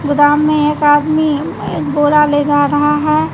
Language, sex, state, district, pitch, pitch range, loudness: Hindi, female, Bihar, West Champaran, 295 Hz, 290-305 Hz, -13 LUFS